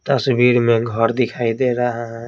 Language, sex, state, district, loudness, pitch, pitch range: Hindi, male, Bihar, Patna, -17 LUFS, 120 Hz, 115-125 Hz